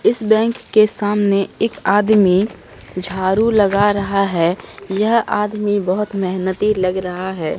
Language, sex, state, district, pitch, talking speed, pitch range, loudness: Hindi, female, Bihar, Katihar, 200 Hz, 135 wpm, 190-210 Hz, -17 LUFS